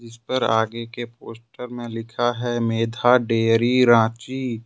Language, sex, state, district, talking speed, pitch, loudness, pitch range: Hindi, male, Jharkhand, Ranchi, 140 wpm, 115 Hz, -21 LUFS, 115-120 Hz